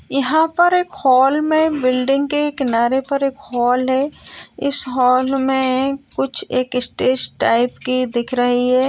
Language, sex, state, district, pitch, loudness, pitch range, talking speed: Hindi, female, Bihar, Gaya, 260 Hz, -17 LUFS, 250-280 Hz, 155 wpm